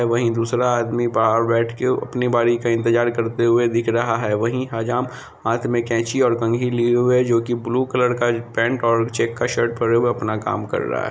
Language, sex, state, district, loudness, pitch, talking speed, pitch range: Hindi, female, Bihar, Samastipur, -20 LUFS, 120 Hz, 225 wpm, 115-120 Hz